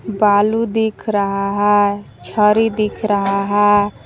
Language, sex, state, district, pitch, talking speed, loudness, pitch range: Hindi, female, Jharkhand, Palamu, 205 Hz, 120 wpm, -16 LUFS, 205-215 Hz